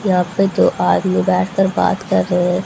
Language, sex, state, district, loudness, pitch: Hindi, female, Haryana, Rohtak, -16 LUFS, 180 Hz